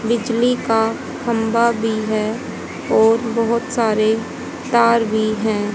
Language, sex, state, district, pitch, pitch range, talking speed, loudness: Hindi, female, Haryana, Jhajjar, 225 Hz, 220-235 Hz, 115 wpm, -18 LUFS